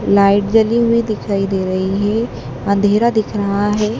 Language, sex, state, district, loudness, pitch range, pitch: Hindi, female, Madhya Pradesh, Dhar, -16 LUFS, 200-225 Hz, 205 Hz